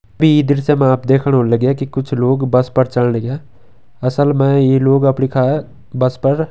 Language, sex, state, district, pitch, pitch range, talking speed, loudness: Garhwali, male, Uttarakhand, Tehri Garhwal, 135 Hz, 125-140 Hz, 195 wpm, -14 LUFS